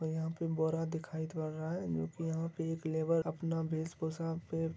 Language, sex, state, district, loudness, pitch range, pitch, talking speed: Hindi, male, Bihar, Lakhisarai, -37 LUFS, 160-165 Hz, 160 Hz, 215 wpm